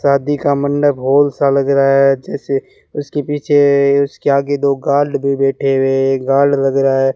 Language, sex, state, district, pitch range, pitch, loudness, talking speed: Hindi, male, Rajasthan, Bikaner, 135-145 Hz, 140 Hz, -14 LUFS, 200 wpm